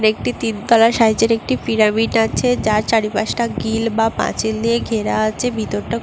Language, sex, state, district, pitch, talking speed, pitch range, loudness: Bengali, female, West Bengal, Paschim Medinipur, 225 Hz, 180 wpm, 220-230 Hz, -17 LUFS